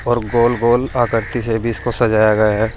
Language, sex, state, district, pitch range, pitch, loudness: Hindi, male, Uttar Pradesh, Saharanpur, 110-120 Hz, 115 Hz, -16 LUFS